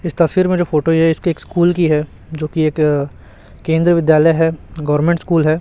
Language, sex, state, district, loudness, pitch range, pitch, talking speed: Hindi, male, Chhattisgarh, Raipur, -15 LUFS, 155-170 Hz, 165 Hz, 215 wpm